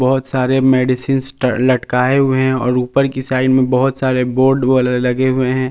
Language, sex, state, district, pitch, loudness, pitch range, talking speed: Hindi, male, Jharkhand, Palamu, 130 Hz, -15 LUFS, 125-130 Hz, 200 wpm